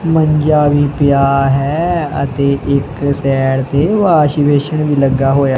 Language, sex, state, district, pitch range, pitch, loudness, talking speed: Punjabi, male, Punjab, Kapurthala, 140-150 Hz, 140 Hz, -13 LUFS, 140 wpm